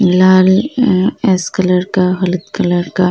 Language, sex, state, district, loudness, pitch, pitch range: Hindi, female, Uttar Pradesh, Muzaffarnagar, -13 LUFS, 185 Hz, 180-190 Hz